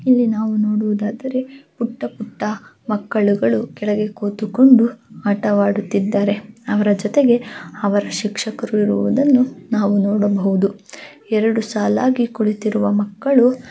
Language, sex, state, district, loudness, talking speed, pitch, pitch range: Kannada, female, Karnataka, Dakshina Kannada, -18 LUFS, 90 wpm, 215 Hz, 205-235 Hz